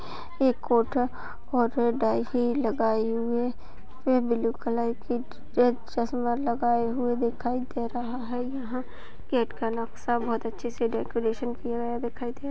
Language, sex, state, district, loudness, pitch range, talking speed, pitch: Hindi, female, Chhattisgarh, Sarguja, -28 LUFS, 235-250 Hz, 160 wpm, 240 Hz